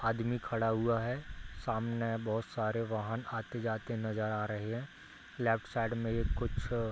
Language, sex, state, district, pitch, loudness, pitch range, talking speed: Hindi, male, Bihar, Gopalganj, 115 Hz, -36 LUFS, 110-115 Hz, 165 wpm